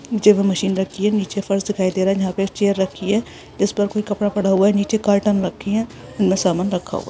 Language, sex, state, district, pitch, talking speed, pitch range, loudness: Hindi, female, Uttar Pradesh, Varanasi, 200 Hz, 255 wpm, 190-205 Hz, -19 LUFS